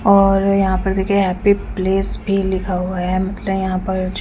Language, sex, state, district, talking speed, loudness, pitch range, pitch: Hindi, female, Chandigarh, Chandigarh, 255 wpm, -17 LUFS, 185-195 Hz, 190 Hz